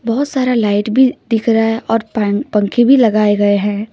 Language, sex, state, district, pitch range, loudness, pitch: Hindi, female, Jharkhand, Deoghar, 210-240 Hz, -14 LUFS, 225 Hz